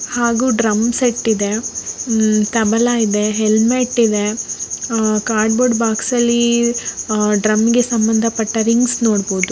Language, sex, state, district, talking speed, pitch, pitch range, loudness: Kannada, female, Karnataka, Bellary, 115 wpm, 225 Hz, 215-235 Hz, -16 LUFS